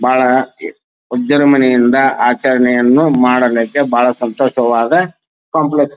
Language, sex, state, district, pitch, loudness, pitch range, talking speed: Kannada, male, Karnataka, Dharwad, 130 Hz, -12 LUFS, 125-145 Hz, 70 wpm